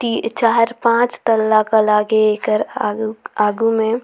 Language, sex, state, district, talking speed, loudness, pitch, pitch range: Surgujia, female, Chhattisgarh, Sarguja, 135 wpm, -16 LUFS, 220 Hz, 215-230 Hz